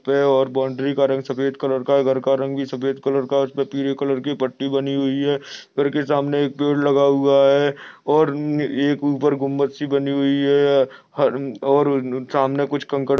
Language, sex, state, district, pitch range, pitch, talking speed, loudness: Hindi, male, Maharashtra, Nagpur, 135-140 Hz, 140 Hz, 205 wpm, -20 LUFS